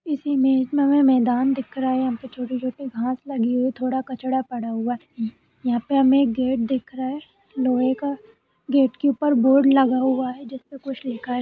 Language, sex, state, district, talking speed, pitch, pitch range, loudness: Hindi, female, Uttar Pradesh, Budaun, 220 wpm, 260 Hz, 250-275 Hz, -22 LUFS